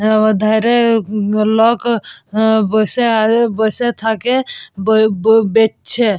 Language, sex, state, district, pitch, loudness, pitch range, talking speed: Bengali, female, West Bengal, Purulia, 220 Hz, -14 LUFS, 215-235 Hz, 50 wpm